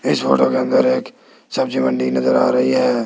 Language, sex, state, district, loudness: Hindi, male, Rajasthan, Jaipur, -17 LUFS